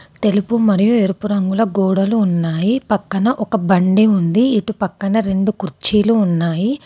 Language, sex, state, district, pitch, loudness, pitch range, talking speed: Telugu, female, Telangana, Komaram Bheem, 205 Hz, -16 LUFS, 190-220 Hz, 130 wpm